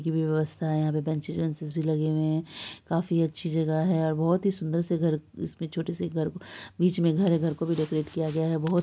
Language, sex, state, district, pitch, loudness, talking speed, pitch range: Hindi, female, Bihar, Saharsa, 160 Hz, -28 LUFS, 195 wpm, 155-165 Hz